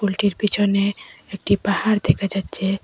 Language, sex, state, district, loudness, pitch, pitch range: Bengali, female, Assam, Hailakandi, -20 LUFS, 200 Hz, 195-205 Hz